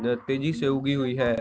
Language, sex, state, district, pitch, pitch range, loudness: Hindi, male, Bihar, Sitamarhi, 135 Hz, 120-135 Hz, -26 LUFS